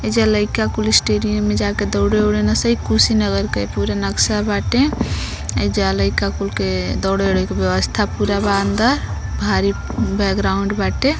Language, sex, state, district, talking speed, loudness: Bhojpuri, female, Uttar Pradesh, Deoria, 160 wpm, -18 LUFS